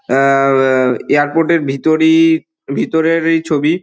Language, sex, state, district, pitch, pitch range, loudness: Bengali, male, West Bengal, Dakshin Dinajpur, 160 Hz, 135-165 Hz, -13 LUFS